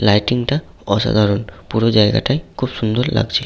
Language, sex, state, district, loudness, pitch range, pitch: Bengali, male, West Bengal, Malda, -17 LUFS, 105-130 Hz, 110 Hz